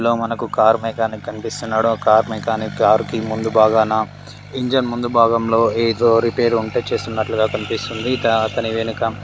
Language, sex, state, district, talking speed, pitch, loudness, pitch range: Telugu, male, Andhra Pradesh, Srikakulam, 160 wpm, 115 Hz, -18 LUFS, 110-115 Hz